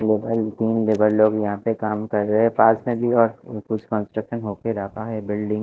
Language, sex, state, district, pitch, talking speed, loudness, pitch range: Hindi, male, Chandigarh, Chandigarh, 110 Hz, 225 wpm, -21 LUFS, 105-115 Hz